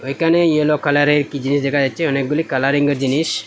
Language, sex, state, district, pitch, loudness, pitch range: Bengali, male, Assam, Hailakandi, 145 Hz, -17 LUFS, 135-150 Hz